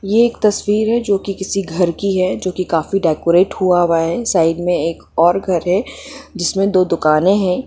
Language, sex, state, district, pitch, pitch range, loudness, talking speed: Hindi, female, Jharkhand, Sahebganj, 185 Hz, 170-200 Hz, -16 LUFS, 210 wpm